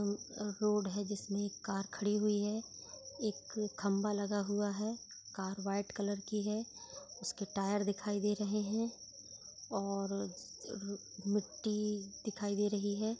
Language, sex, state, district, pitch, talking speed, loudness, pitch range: Hindi, female, Maharashtra, Dhule, 205 Hz, 145 wpm, -38 LUFS, 200-210 Hz